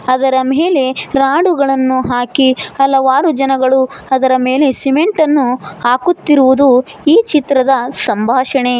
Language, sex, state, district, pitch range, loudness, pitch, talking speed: Kannada, female, Karnataka, Koppal, 260-280 Hz, -12 LUFS, 265 Hz, 95 wpm